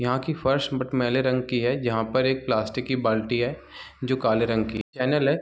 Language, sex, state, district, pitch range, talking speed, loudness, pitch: Hindi, male, Bihar, East Champaran, 115-130 Hz, 220 wpm, -25 LUFS, 125 Hz